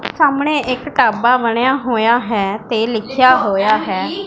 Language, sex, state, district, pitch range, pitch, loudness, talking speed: Punjabi, female, Punjab, Pathankot, 225-275 Hz, 245 Hz, -15 LUFS, 140 wpm